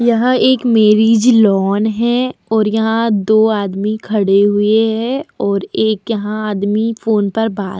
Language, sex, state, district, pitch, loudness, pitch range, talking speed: Hindi, female, Bihar, Vaishali, 220 Hz, -14 LUFS, 205-225 Hz, 155 wpm